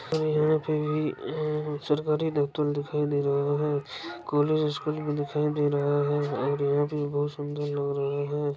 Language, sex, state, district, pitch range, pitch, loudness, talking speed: Maithili, male, Bihar, Darbhanga, 145-150 Hz, 145 Hz, -28 LUFS, 175 wpm